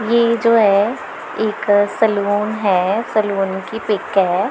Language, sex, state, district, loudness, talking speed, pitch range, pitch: Hindi, female, Punjab, Pathankot, -17 LUFS, 135 wpm, 200-220 Hz, 210 Hz